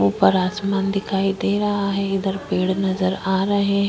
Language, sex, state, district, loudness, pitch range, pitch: Hindi, female, Chhattisgarh, Korba, -21 LUFS, 190-200 Hz, 195 Hz